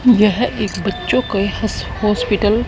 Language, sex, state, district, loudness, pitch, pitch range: Hindi, female, Haryana, Jhajjar, -17 LUFS, 220 Hz, 205-245 Hz